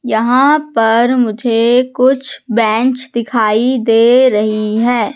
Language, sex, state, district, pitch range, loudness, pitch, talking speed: Hindi, female, Madhya Pradesh, Katni, 225-255 Hz, -12 LUFS, 235 Hz, 105 wpm